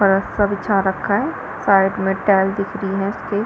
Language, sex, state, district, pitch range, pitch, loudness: Hindi, female, Chhattisgarh, Balrampur, 195-200 Hz, 195 Hz, -19 LUFS